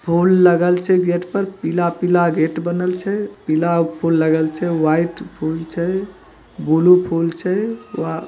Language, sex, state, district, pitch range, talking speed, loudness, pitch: Hindi, male, Bihar, Begusarai, 165-180 Hz, 150 wpm, -18 LUFS, 175 Hz